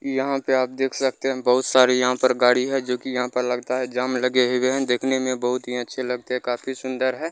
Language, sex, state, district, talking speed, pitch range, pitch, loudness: Maithili, male, Bihar, Muzaffarpur, 260 wpm, 125-130 Hz, 130 Hz, -22 LUFS